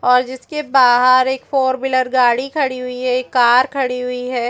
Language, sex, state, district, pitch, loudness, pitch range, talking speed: Hindi, female, Chhattisgarh, Bastar, 255 Hz, -16 LUFS, 250-265 Hz, 215 wpm